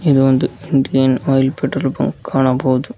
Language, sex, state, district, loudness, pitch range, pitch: Kannada, male, Karnataka, Koppal, -16 LUFS, 130-135 Hz, 135 Hz